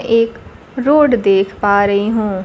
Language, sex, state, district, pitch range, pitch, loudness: Hindi, female, Bihar, Kaimur, 200-240 Hz, 215 Hz, -14 LUFS